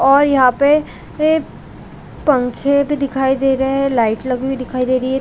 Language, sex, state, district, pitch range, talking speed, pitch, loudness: Hindi, female, Chhattisgarh, Bilaspur, 255-280 Hz, 185 wpm, 270 Hz, -16 LUFS